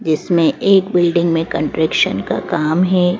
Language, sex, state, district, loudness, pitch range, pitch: Hindi, female, Madhya Pradesh, Bhopal, -15 LUFS, 160-180 Hz, 170 Hz